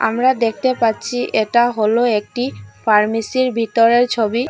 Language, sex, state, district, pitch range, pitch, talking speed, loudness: Bengali, female, Assam, Hailakandi, 220-245 Hz, 230 Hz, 135 wpm, -17 LUFS